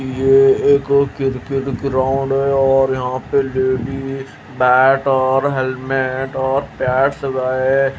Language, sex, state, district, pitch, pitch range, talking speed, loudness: Hindi, male, Haryana, Jhajjar, 135 Hz, 130-135 Hz, 120 wpm, -16 LUFS